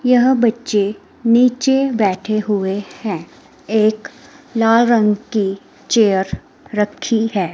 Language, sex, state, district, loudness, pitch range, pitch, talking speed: Hindi, female, Himachal Pradesh, Shimla, -17 LUFS, 205-250 Hz, 225 Hz, 105 wpm